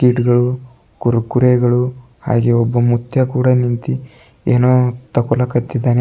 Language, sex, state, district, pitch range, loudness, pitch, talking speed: Kannada, male, Karnataka, Bidar, 120-125 Hz, -16 LUFS, 125 Hz, 90 wpm